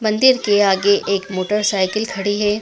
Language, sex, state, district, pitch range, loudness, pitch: Hindi, female, Madhya Pradesh, Dhar, 195-210 Hz, -17 LUFS, 205 Hz